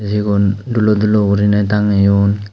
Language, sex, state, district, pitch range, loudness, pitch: Chakma, male, Tripura, Unakoti, 100-105 Hz, -14 LUFS, 105 Hz